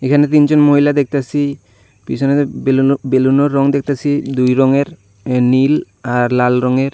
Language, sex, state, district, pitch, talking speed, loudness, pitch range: Bengali, female, Tripura, Unakoti, 135 Hz, 130 wpm, -14 LUFS, 125-145 Hz